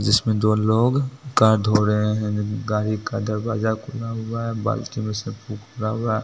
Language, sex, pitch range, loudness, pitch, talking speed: Bhojpuri, male, 105-115 Hz, -22 LUFS, 110 Hz, 195 wpm